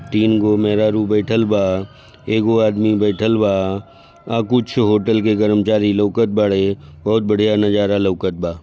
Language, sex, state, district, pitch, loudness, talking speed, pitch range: Bhojpuri, male, Bihar, Gopalganj, 105 Hz, -17 LUFS, 145 wpm, 100-110 Hz